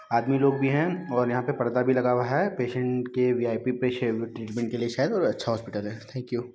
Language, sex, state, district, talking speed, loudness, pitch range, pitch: Hindi, male, Bihar, Muzaffarpur, 240 wpm, -26 LUFS, 120-130 Hz, 125 Hz